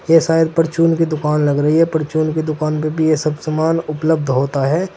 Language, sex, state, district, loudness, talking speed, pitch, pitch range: Hindi, male, Uttar Pradesh, Saharanpur, -16 LUFS, 230 wpm, 155 Hz, 150-165 Hz